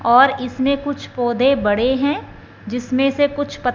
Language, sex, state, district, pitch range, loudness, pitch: Hindi, male, Punjab, Fazilka, 245-275 Hz, -18 LUFS, 265 Hz